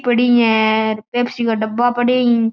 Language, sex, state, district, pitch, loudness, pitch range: Marwari, male, Rajasthan, Churu, 235 Hz, -16 LUFS, 220-245 Hz